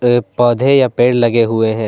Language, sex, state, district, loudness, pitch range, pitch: Hindi, male, Jharkhand, Deoghar, -13 LUFS, 115-120 Hz, 120 Hz